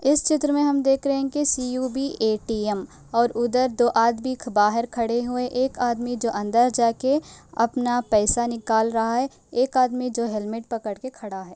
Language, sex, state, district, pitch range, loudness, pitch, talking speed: Hindi, female, Uttar Pradesh, Ghazipur, 230-260 Hz, -23 LUFS, 240 Hz, 180 wpm